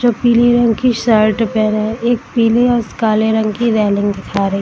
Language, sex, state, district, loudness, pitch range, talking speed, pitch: Hindi, female, Bihar, Darbhanga, -14 LUFS, 215-240 Hz, 235 wpm, 225 Hz